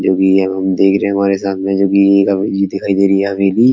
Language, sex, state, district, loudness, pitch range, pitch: Hindi, male, Uttar Pradesh, Etah, -13 LUFS, 95-100 Hz, 100 Hz